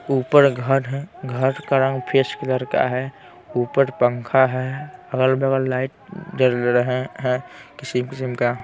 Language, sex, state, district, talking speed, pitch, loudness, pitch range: Hindi, male, Bihar, Patna, 145 wpm, 130 Hz, -21 LUFS, 125-135 Hz